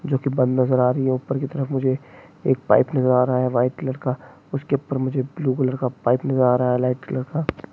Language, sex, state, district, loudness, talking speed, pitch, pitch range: Hindi, male, West Bengal, Jhargram, -21 LUFS, 255 wpm, 130 Hz, 125-135 Hz